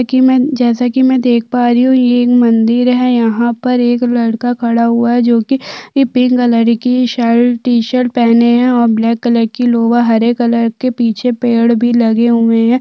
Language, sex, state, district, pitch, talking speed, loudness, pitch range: Hindi, female, Chhattisgarh, Sukma, 240 Hz, 200 wpm, -11 LUFS, 235-250 Hz